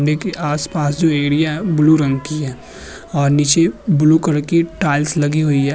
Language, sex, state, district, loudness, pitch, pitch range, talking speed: Hindi, male, Uttar Pradesh, Hamirpur, -16 LUFS, 150 Hz, 145-160 Hz, 185 wpm